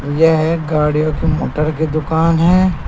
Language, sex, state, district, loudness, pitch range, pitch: Hindi, male, Uttar Pradesh, Saharanpur, -15 LUFS, 150-165 Hz, 160 Hz